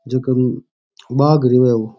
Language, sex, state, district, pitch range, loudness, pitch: Rajasthani, male, Rajasthan, Churu, 125-130 Hz, -16 LUFS, 125 Hz